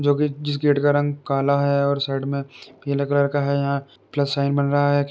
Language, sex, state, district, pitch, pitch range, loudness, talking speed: Hindi, male, Uttar Pradesh, Muzaffarnagar, 140 Hz, 140-145 Hz, -21 LUFS, 245 wpm